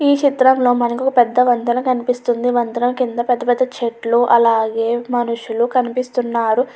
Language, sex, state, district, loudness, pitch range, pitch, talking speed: Telugu, female, Andhra Pradesh, Chittoor, -16 LUFS, 235-250 Hz, 245 Hz, 160 wpm